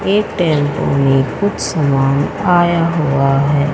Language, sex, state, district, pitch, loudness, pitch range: Hindi, female, Haryana, Jhajjar, 145 Hz, -14 LUFS, 140-175 Hz